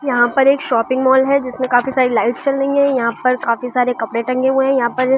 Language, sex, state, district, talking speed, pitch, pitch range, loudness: Hindi, female, Delhi, New Delhi, 265 wpm, 255 Hz, 245-270 Hz, -16 LUFS